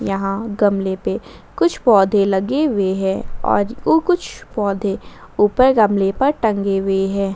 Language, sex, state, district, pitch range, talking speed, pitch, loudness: Hindi, female, Jharkhand, Ranchi, 195-225 Hz, 145 wpm, 200 Hz, -17 LUFS